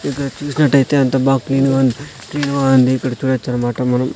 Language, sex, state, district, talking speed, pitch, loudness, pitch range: Telugu, male, Andhra Pradesh, Sri Satya Sai, 200 wpm, 135 Hz, -16 LUFS, 130-140 Hz